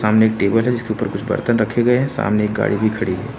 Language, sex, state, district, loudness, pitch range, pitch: Hindi, male, Uttar Pradesh, Lucknow, -18 LUFS, 105-120 Hz, 110 Hz